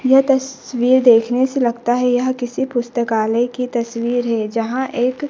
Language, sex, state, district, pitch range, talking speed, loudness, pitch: Hindi, female, Madhya Pradesh, Dhar, 235-260 Hz, 160 wpm, -17 LUFS, 245 Hz